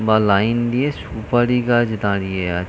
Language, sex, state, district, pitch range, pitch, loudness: Bengali, male, West Bengal, North 24 Parganas, 100-120 Hz, 110 Hz, -18 LUFS